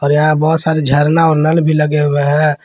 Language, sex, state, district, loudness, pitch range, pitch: Hindi, male, Jharkhand, Garhwa, -12 LUFS, 145-160 Hz, 155 Hz